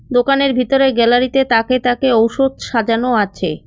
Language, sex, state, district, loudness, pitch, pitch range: Bengali, female, West Bengal, Cooch Behar, -14 LUFS, 250 Hz, 230-270 Hz